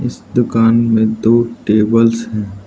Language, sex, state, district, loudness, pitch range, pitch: Hindi, male, Arunachal Pradesh, Lower Dibang Valley, -14 LUFS, 110-115 Hz, 115 Hz